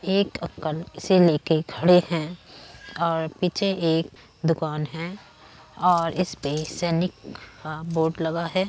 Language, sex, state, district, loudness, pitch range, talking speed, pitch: Hindi, female, Uttar Pradesh, Muzaffarnagar, -24 LUFS, 155-180 Hz, 115 wpm, 165 Hz